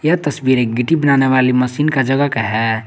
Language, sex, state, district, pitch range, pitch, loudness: Hindi, male, Jharkhand, Garhwa, 120-145 Hz, 130 Hz, -15 LUFS